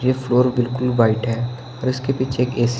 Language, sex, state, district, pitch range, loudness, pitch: Hindi, male, Himachal Pradesh, Shimla, 120-130 Hz, -20 LUFS, 125 Hz